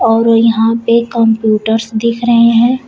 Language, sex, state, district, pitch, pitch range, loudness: Hindi, female, Uttar Pradesh, Shamli, 230 Hz, 225-235 Hz, -11 LUFS